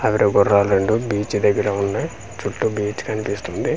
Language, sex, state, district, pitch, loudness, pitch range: Telugu, male, Andhra Pradesh, Manyam, 105 Hz, -20 LUFS, 100-105 Hz